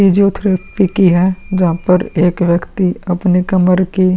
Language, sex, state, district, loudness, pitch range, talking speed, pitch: Hindi, male, Uttar Pradesh, Muzaffarnagar, -13 LUFS, 180-195 Hz, 160 wpm, 185 Hz